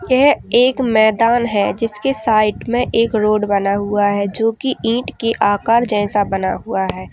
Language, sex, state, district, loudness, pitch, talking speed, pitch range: Hindi, female, Uttar Pradesh, Etah, -16 LUFS, 220 Hz, 175 wpm, 205-240 Hz